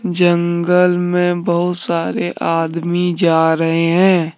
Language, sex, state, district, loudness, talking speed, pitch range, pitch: Hindi, male, Jharkhand, Deoghar, -15 LUFS, 110 wpm, 165-180 Hz, 175 Hz